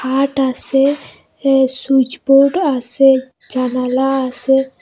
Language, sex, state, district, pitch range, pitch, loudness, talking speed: Bengali, female, Assam, Hailakandi, 260-275 Hz, 265 Hz, -15 LUFS, 85 wpm